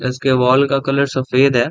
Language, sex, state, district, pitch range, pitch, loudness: Hindi, male, Bihar, Darbhanga, 125-140 Hz, 130 Hz, -15 LUFS